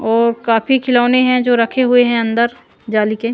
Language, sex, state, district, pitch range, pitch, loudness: Hindi, female, Punjab, Pathankot, 230-250 Hz, 235 Hz, -14 LUFS